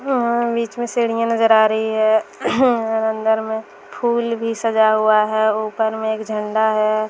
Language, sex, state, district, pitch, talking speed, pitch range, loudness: Hindi, female, Bihar, Saran, 220 Hz, 170 wpm, 215-230 Hz, -18 LUFS